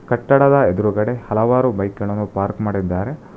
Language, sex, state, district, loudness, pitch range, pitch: Kannada, male, Karnataka, Bangalore, -18 LUFS, 100-125 Hz, 105 Hz